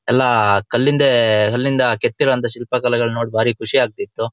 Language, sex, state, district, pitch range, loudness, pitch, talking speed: Kannada, male, Karnataka, Shimoga, 115-130 Hz, -17 LUFS, 120 Hz, 140 wpm